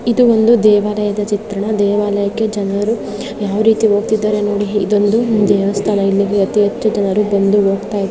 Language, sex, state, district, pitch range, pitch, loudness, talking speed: Kannada, female, Karnataka, Dharwad, 200-215 Hz, 205 Hz, -14 LUFS, 140 wpm